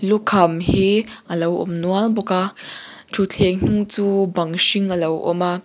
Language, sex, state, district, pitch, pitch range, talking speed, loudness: Mizo, female, Mizoram, Aizawl, 190 Hz, 175-205 Hz, 180 wpm, -18 LUFS